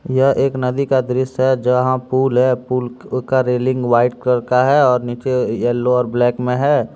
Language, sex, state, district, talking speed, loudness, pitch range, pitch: Hindi, male, Jharkhand, Deoghar, 200 wpm, -16 LUFS, 125-130 Hz, 125 Hz